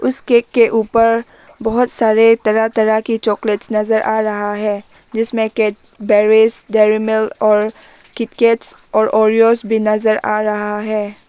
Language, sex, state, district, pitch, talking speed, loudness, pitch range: Hindi, female, Arunachal Pradesh, Lower Dibang Valley, 220 Hz, 120 wpm, -15 LUFS, 215-230 Hz